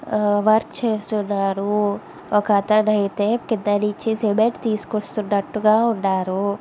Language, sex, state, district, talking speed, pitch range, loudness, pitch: Telugu, female, Andhra Pradesh, Visakhapatnam, 100 wpm, 205-220 Hz, -20 LUFS, 210 Hz